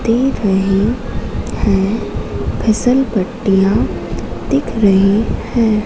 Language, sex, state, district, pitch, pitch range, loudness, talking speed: Hindi, female, Madhya Pradesh, Katni, 215 Hz, 195-235 Hz, -16 LUFS, 70 wpm